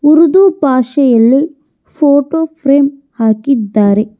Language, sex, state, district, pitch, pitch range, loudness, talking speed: Kannada, female, Karnataka, Bangalore, 280 Hz, 235-300 Hz, -11 LUFS, 70 wpm